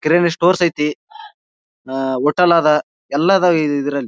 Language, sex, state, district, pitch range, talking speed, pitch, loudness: Kannada, male, Karnataka, Bijapur, 145-180 Hz, 130 wpm, 160 Hz, -16 LUFS